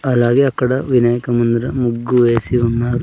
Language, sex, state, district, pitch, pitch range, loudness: Telugu, male, Andhra Pradesh, Sri Satya Sai, 120 Hz, 120-125 Hz, -15 LUFS